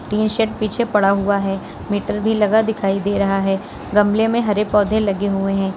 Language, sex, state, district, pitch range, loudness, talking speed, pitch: Hindi, female, Uttar Pradesh, Lalitpur, 195-215 Hz, -18 LUFS, 210 wpm, 205 Hz